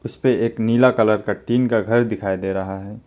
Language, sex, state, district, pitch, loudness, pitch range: Hindi, male, West Bengal, Alipurduar, 115 Hz, -19 LUFS, 105-120 Hz